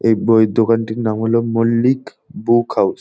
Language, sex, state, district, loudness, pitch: Bengali, male, West Bengal, Jhargram, -16 LUFS, 115 Hz